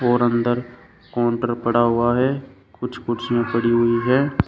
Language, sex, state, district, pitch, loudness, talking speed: Hindi, male, Uttar Pradesh, Shamli, 120 Hz, -20 LUFS, 160 wpm